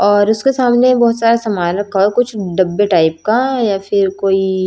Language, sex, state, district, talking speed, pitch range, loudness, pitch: Hindi, female, Chhattisgarh, Raipur, 190 wpm, 195-235 Hz, -14 LUFS, 205 Hz